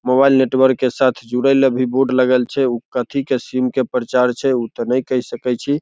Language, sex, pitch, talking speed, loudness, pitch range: Maithili, male, 130 Hz, 235 wpm, -17 LUFS, 125-135 Hz